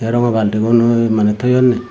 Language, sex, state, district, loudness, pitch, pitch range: Chakma, male, Tripura, Dhalai, -14 LUFS, 115 Hz, 110-120 Hz